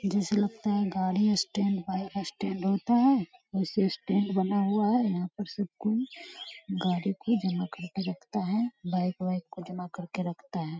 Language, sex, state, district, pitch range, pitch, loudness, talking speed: Hindi, female, Bihar, Lakhisarai, 185-210 Hz, 195 Hz, -30 LUFS, 180 wpm